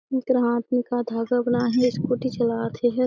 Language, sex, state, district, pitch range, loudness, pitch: Chhattisgarhi, female, Chhattisgarh, Jashpur, 240-250 Hz, -23 LUFS, 245 Hz